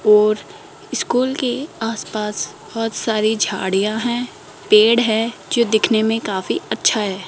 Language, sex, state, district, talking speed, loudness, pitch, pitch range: Hindi, female, Rajasthan, Jaipur, 140 wpm, -18 LUFS, 220 Hz, 210-240 Hz